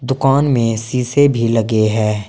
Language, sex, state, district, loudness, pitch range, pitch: Hindi, male, Uttar Pradesh, Saharanpur, -15 LUFS, 110-135 Hz, 115 Hz